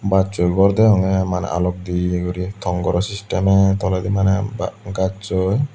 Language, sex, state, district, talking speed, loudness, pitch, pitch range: Chakma, male, Tripura, Dhalai, 135 wpm, -19 LUFS, 95 Hz, 90-100 Hz